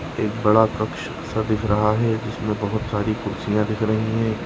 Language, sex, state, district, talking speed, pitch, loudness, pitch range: Bhojpuri, male, Uttar Pradesh, Gorakhpur, 190 wpm, 110 Hz, -22 LUFS, 105-110 Hz